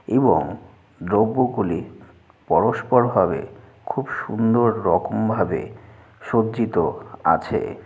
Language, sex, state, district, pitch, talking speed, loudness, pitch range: Bengali, male, West Bengal, Jalpaiguri, 110 Hz, 85 wpm, -21 LUFS, 110-115 Hz